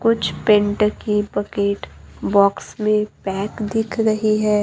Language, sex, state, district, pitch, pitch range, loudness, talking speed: Hindi, male, Maharashtra, Gondia, 210 Hz, 205-215 Hz, -20 LUFS, 130 wpm